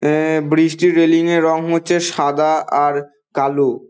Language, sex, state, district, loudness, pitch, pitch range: Bengali, male, West Bengal, Dakshin Dinajpur, -16 LUFS, 160 Hz, 145-170 Hz